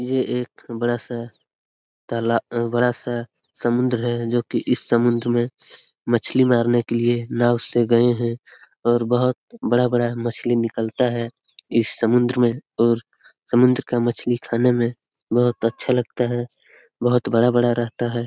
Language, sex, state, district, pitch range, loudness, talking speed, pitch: Hindi, male, Bihar, Lakhisarai, 115-120 Hz, -21 LUFS, 150 wpm, 120 Hz